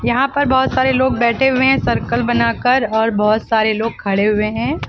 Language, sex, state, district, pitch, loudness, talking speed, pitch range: Hindi, female, Uttar Pradesh, Lucknow, 235 Hz, -15 LUFS, 210 wpm, 220-260 Hz